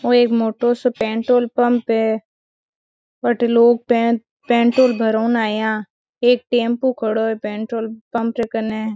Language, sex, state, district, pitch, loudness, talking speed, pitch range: Marwari, female, Rajasthan, Nagaur, 235 Hz, -18 LUFS, 145 wpm, 220-240 Hz